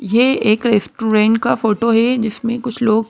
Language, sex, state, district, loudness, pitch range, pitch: Hindi, female, Madhya Pradesh, Bhopal, -16 LUFS, 220-235 Hz, 225 Hz